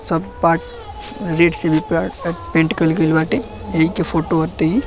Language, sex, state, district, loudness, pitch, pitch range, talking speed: Bhojpuri, male, Uttar Pradesh, Deoria, -18 LUFS, 165 Hz, 160-180 Hz, 185 wpm